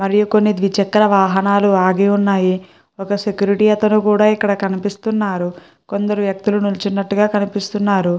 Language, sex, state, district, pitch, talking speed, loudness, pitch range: Telugu, female, Andhra Pradesh, Guntur, 200 Hz, 115 wpm, -16 LUFS, 195-210 Hz